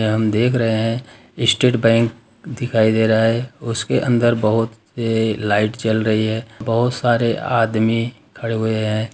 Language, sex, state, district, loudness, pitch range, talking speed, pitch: Hindi, male, Bihar, Darbhanga, -18 LUFS, 110-120 Hz, 150 wpm, 115 Hz